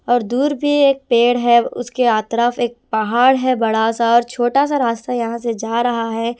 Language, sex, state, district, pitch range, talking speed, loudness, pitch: Hindi, female, Punjab, Kapurthala, 230-250 Hz, 215 wpm, -16 LUFS, 240 Hz